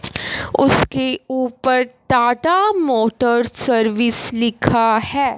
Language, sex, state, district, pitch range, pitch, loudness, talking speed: Hindi, male, Punjab, Fazilka, 230-260 Hz, 245 Hz, -16 LUFS, 80 wpm